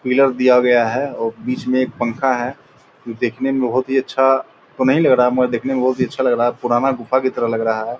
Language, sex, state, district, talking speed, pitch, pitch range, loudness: Angika, male, Bihar, Purnia, 280 wpm, 125 Hz, 120-135 Hz, -17 LUFS